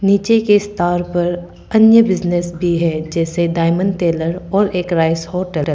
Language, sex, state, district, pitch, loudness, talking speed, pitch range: Hindi, female, Arunachal Pradesh, Papum Pare, 175 Hz, -15 LUFS, 165 wpm, 170-195 Hz